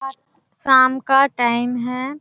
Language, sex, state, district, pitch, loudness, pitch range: Hindi, female, Bihar, Kishanganj, 265 Hz, -17 LUFS, 245-270 Hz